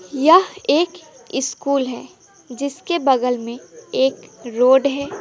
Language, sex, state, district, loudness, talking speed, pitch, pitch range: Hindi, female, West Bengal, Alipurduar, -18 LUFS, 115 wpm, 275 Hz, 255-335 Hz